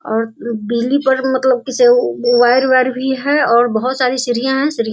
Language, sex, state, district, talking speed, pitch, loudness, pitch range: Hindi, female, Bihar, Sitamarhi, 185 wpm, 250 Hz, -14 LUFS, 235-260 Hz